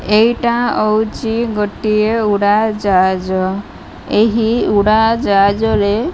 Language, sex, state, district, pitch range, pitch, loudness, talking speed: Odia, female, Odisha, Malkangiri, 205-225 Hz, 215 Hz, -14 LUFS, 70 wpm